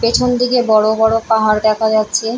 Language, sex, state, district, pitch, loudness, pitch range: Bengali, female, West Bengal, Paschim Medinipur, 220 Hz, -14 LUFS, 215-230 Hz